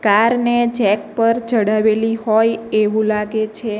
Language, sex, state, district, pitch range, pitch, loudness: Gujarati, female, Gujarat, Navsari, 215-230 Hz, 220 Hz, -16 LUFS